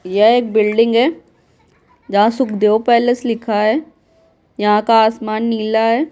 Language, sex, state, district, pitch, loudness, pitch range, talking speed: Hindi, female, Bihar, Kishanganj, 225 Hz, -15 LUFS, 215-240 Hz, 135 wpm